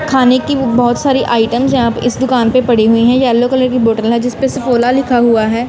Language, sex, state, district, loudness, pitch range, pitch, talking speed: Hindi, female, Punjab, Kapurthala, -12 LUFS, 235-260 Hz, 245 Hz, 245 wpm